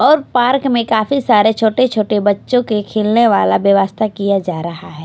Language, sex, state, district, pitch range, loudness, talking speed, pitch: Hindi, female, Punjab, Pathankot, 200-245 Hz, -14 LUFS, 190 wpm, 215 Hz